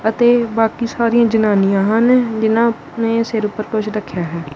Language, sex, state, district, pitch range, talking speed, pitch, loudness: Punjabi, male, Punjab, Kapurthala, 210-235 Hz, 170 wpm, 225 Hz, -16 LUFS